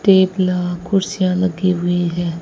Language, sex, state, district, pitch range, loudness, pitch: Hindi, female, Rajasthan, Bikaner, 175-185 Hz, -17 LUFS, 180 Hz